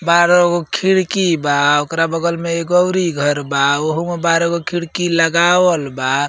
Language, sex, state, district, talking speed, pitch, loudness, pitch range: Bhojpuri, male, Uttar Pradesh, Ghazipur, 160 wpm, 170 Hz, -15 LUFS, 150-175 Hz